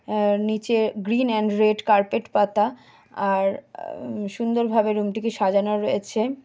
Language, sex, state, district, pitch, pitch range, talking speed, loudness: Bengali, female, West Bengal, Jalpaiguri, 215 Hz, 205-225 Hz, 130 wpm, -22 LUFS